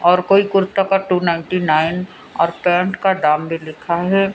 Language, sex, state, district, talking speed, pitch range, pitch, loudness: Hindi, female, Odisha, Sambalpur, 195 wpm, 170-195 Hz, 180 Hz, -17 LUFS